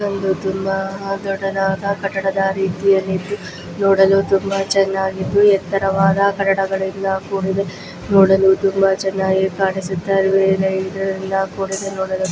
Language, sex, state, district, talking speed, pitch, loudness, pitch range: Kannada, female, Karnataka, Dharwad, 95 wpm, 195 Hz, -17 LUFS, 190-195 Hz